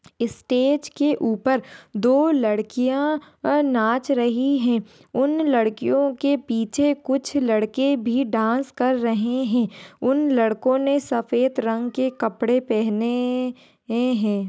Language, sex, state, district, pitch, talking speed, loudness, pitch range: Hindi, female, Maharashtra, Pune, 250 Hz, 120 wpm, -22 LUFS, 225-270 Hz